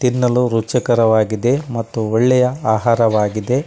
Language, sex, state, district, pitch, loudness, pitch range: Kannada, male, Karnataka, Koppal, 120 Hz, -16 LUFS, 110-125 Hz